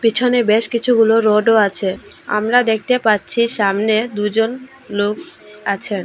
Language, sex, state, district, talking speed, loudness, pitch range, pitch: Bengali, female, Assam, Hailakandi, 130 wpm, -16 LUFS, 210-235 Hz, 220 Hz